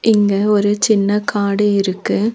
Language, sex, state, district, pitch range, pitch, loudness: Tamil, female, Tamil Nadu, Nilgiris, 200-210 Hz, 205 Hz, -15 LUFS